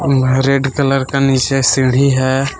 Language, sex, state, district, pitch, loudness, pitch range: Hindi, male, Jharkhand, Palamu, 135 Hz, -13 LUFS, 130-135 Hz